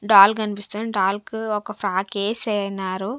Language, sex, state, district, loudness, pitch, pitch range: Telugu, female, Andhra Pradesh, Sri Satya Sai, -22 LUFS, 205 Hz, 195-215 Hz